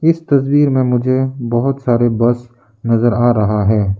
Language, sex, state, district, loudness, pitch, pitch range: Hindi, male, Arunachal Pradesh, Lower Dibang Valley, -14 LUFS, 120 Hz, 115-130 Hz